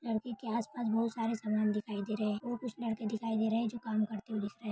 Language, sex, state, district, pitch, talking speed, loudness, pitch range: Hindi, female, Jharkhand, Jamtara, 220 Hz, 280 wpm, -35 LUFS, 215-230 Hz